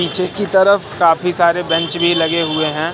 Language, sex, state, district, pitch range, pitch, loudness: Hindi, male, Madhya Pradesh, Katni, 165-180 Hz, 170 Hz, -15 LUFS